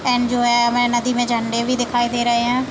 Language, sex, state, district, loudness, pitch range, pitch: Hindi, female, Uttar Pradesh, Deoria, -18 LUFS, 240-245 Hz, 240 Hz